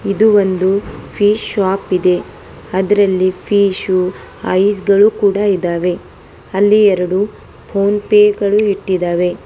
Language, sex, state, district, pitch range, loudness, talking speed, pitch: Kannada, female, Karnataka, Bangalore, 185-205 Hz, -14 LUFS, 100 wpm, 200 Hz